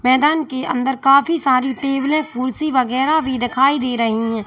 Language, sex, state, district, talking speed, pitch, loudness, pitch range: Hindi, female, Uttar Pradesh, Lalitpur, 175 wpm, 265 Hz, -17 LUFS, 250-280 Hz